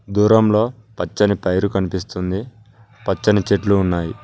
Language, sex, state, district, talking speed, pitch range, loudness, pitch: Telugu, male, Telangana, Mahabubabad, 115 wpm, 95-110 Hz, -18 LUFS, 100 Hz